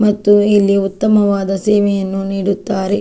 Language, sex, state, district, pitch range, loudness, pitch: Kannada, female, Karnataka, Dakshina Kannada, 195-205 Hz, -14 LUFS, 200 Hz